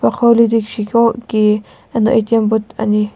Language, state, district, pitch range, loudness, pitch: Sumi, Nagaland, Kohima, 210-230 Hz, -14 LUFS, 220 Hz